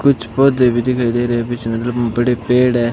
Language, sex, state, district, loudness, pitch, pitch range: Hindi, male, Rajasthan, Bikaner, -16 LUFS, 120 Hz, 120-125 Hz